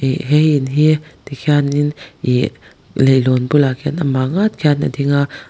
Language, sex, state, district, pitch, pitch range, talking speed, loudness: Mizo, male, Mizoram, Aizawl, 145 Hz, 135-150 Hz, 155 wpm, -16 LUFS